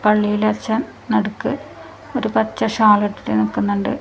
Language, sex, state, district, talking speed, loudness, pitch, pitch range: Malayalam, female, Kerala, Kasaragod, 105 wpm, -19 LUFS, 210 Hz, 205-220 Hz